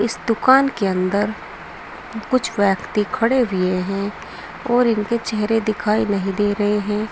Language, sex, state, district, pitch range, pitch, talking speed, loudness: Hindi, female, Uttar Pradesh, Saharanpur, 200-225 Hz, 210 Hz, 145 wpm, -19 LUFS